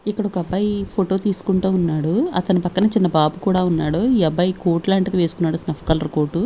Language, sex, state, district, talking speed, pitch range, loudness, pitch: Telugu, female, Andhra Pradesh, Sri Satya Sai, 195 wpm, 165-195 Hz, -19 LUFS, 180 Hz